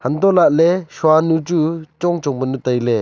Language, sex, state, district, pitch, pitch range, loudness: Wancho, male, Arunachal Pradesh, Longding, 160 Hz, 135-170 Hz, -16 LUFS